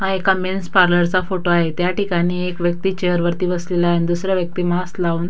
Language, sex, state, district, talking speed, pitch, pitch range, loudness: Marathi, female, Maharashtra, Dhule, 225 wpm, 180 Hz, 175-185 Hz, -19 LUFS